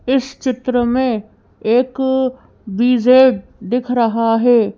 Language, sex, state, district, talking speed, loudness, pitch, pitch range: Hindi, female, Madhya Pradesh, Bhopal, 90 wpm, -15 LUFS, 245 Hz, 230-255 Hz